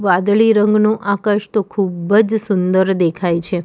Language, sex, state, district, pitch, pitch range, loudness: Gujarati, female, Gujarat, Valsad, 200 Hz, 180-215 Hz, -15 LUFS